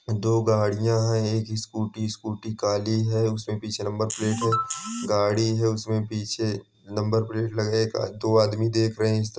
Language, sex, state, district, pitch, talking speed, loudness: Hindi, male, West Bengal, Malda, 110 Hz, 165 wpm, -25 LUFS